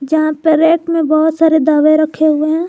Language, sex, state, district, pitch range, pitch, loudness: Hindi, female, Jharkhand, Garhwa, 310-320 Hz, 315 Hz, -12 LUFS